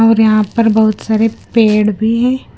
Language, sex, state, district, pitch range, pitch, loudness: Hindi, female, Punjab, Kapurthala, 215-225 Hz, 220 Hz, -12 LUFS